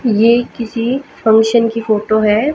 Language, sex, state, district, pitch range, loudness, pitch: Hindi, female, Haryana, Jhajjar, 220-240 Hz, -14 LUFS, 230 Hz